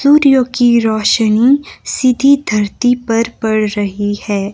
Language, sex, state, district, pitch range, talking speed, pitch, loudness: Hindi, female, Himachal Pradesh, Shimla, 210-255 Hz, 120 wpm, 225 Hz, -13 LUFS